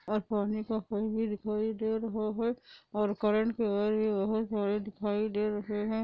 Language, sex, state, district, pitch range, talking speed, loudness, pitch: Hindi, female, Andhra Pradesh, Anantapur, 210-220 Hz, 210 wpm, -32 LUFS, 215 Hz